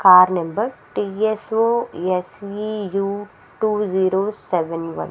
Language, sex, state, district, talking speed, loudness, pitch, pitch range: Telugu, female, Andhra Pradesh, Sri Satya Sai, 105 wpm, -21 LUFS, 200 Hz, 185-215 Hz